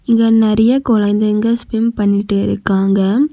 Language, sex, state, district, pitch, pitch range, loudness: Tamil, female, Tamil Nadu, Nilgiris, 220 Hz, 200-230 Hz, -14 LUFS